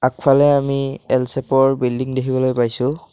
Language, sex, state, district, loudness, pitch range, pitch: Assamese, male, Assam, Kamrup Metropolitan, -17 LUFS, 130-135 Hz, 130 Hz